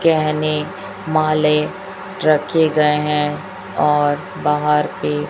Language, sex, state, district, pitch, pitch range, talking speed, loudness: Hindi, female, Chhattisgarh, Raipur, 150 Hz, 150-160 Hz, 100 wpm, -18 LUFS